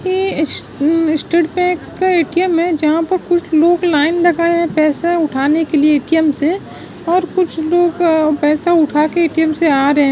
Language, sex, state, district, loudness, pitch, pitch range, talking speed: Hindi, female, Bihar, Kishanganj, -14 LUFS, 330 Hz, 305-345 Hz, 180 wpm